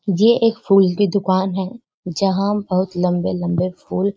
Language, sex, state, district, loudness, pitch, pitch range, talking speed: Hindi, female, Uttarakhand, Uttarkashi, -18 LUFS, 190 Hz, 185-205 Hz, 160 wpm